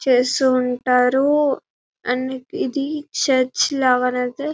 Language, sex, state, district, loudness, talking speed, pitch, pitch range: Telugu, female, Telangana, Karimnagar, -19 LUFS, 90 wpm, 260 Hz, 250-280 Hz